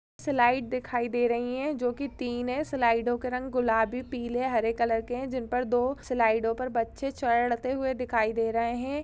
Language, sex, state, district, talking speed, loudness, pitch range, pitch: Hindi, female, Bihar, Purnia, 200 wpm, -28 LUFS, 235-255 Hz, 245 Hz